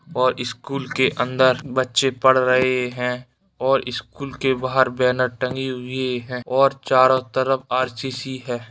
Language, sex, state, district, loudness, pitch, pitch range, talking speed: Hindi, male, Bihar, Darbhanga, -20 LUFS, 130 Hz, 125-130 Hz, 145 wpm